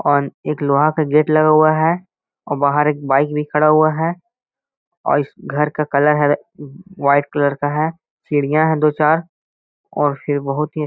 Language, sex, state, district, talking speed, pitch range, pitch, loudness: Hindi, male, Bihar, Gaya, 195 wpm, 145-160 Hz, 150 Hz, -17 LUFS